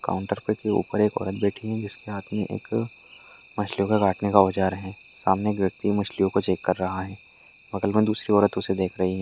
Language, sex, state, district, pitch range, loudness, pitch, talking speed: Hindi, male, Bihar, Lakhisarai, 95-105 Hz, -25 LUFS, 100 Hz, 235 wpm